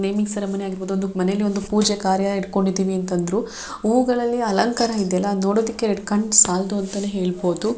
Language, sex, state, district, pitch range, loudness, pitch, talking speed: Kannada, female, Karnataka, Shimoga, 190-215 Hz, -20 LUFS, 200 Hz, 145 wpm